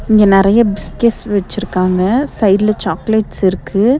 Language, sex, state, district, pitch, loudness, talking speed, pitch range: Tamil, female, Tamil Nadu, Nilgiris, 205 Hz, -13 LUFS, 105 wpm, 195-220 Hz